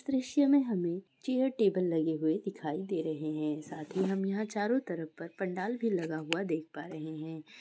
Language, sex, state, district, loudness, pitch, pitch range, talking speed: Hindi, female, Bihar, Bhagalpur, -33 LUFS, 180 Hz, 155-210 Hz, 205 wpm